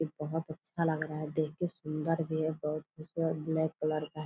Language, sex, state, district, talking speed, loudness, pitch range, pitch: Hindi, female, Bihar, Purnia, 195 wpm, -34 LUFS, 155-160 Hz, 155 Hz